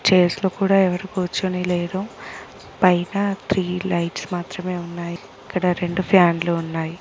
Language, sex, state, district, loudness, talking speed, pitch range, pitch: Telugu, female, Telangana, Nalgonda, -21 LUFS, 130 wpm, 175-190 Hz, 180 Hz